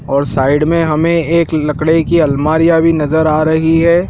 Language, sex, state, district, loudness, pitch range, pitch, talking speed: Hindi, male, Madhya Pradesh, Dhar, -12 LUFS, 150-165 Hz, 160 Hz, 190 wpm